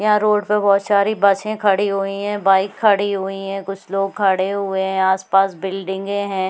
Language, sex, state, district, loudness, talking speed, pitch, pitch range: Hindi, female, Chhattisgarh, Bilaspur, -18 LUFS, 195 wpm, 195 Hz, 195-205 Hz